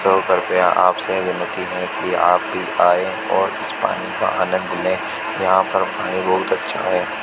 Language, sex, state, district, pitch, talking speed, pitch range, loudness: Hindi, male, Rajasthan, Bikaner, 95 Hz, 110 wpm, 90-95 Hz, -19 LUFS